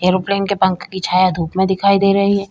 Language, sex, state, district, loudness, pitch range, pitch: Hindi, female, Uttar Pradesh, Budaun, -16 LUFS, 185-200 Hz, 190 Hz